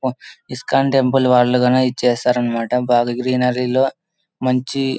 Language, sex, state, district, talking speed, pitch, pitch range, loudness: Telugu, male, Andhra Pradesh, Anantapur, 130 wpm, 125 Hz, 125-130 Hz, -17 LUFS